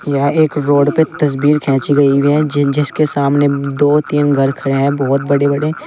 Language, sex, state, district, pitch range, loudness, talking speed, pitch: Hindi, male, Uttar Pradesh, Saharanpur, 140-150 Hz, -14 LUFS, 215 wpm, 145 Hz